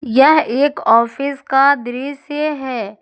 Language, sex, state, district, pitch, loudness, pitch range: Hindi, female, Jharkhand, Ranchi, 270 Hz, -15 LUFS, 245-285 Hz